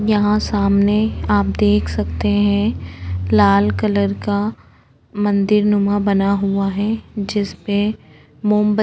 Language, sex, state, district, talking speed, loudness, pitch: Hindi, female, Uttarakhand, Tehri Garhwal, 115 wpm, -17 LUFS, 195 Hz